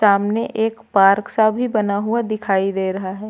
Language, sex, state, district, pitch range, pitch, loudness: Hindi, female, Uttar Pradesh, Lucknow, 195-220 Hz, 210 Hz, -18 LUFS